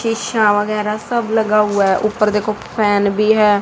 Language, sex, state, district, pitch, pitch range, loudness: Hindi, female, Haryana, Jhajjar, 210 Hz, 205-215 Hz, -16 LUFS